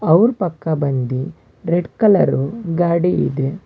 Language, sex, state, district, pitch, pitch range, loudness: Kannada, male, Karnataka, Bangalore, 170 Hz, 145-185 Hz, -17 LUFS